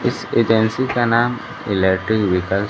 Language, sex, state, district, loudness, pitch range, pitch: Hindi, male, Bihar, Kaimur, -18 LUFS, 100-120 Hz, 110 Hz